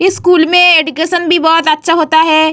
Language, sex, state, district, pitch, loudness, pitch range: Hindi, female, Bihar, Vaishali, 325 Hz, -9 LUFS, 315-350 Hz